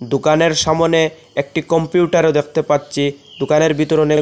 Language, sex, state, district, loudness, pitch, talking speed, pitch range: Bengali, male, Assam, Hailakandi, -16 LUFS, 155 Hz, 130 wpm, 145-160 Hz